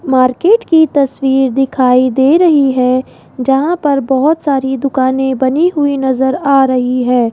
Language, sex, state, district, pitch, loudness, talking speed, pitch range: Hindi, female, Rajasthan, Jaipur, 265 Hz, -12 LUFS, 145 wpm, 260-285 Hz